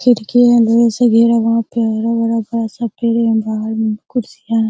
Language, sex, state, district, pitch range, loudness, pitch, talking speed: Hindi, female, Bihar, Araria, 220-235 Hz, -15 LUFS, 230 Hz, 50 wpm